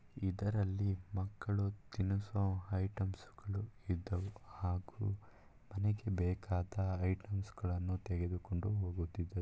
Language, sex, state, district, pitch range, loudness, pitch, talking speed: Kannada, male, Karnataka, Mysore, 90-100 Hz, -40 LUFS, 95 Hz, 70 wpm